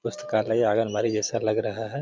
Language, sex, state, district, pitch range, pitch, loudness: Hindi, male, Bihar, Gaya, 105-115 Hz, 110 Hz, -25 LUFS